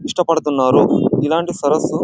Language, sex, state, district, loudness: Telugu, male, Andhra Pradesh, Anantapur, -16 LUFS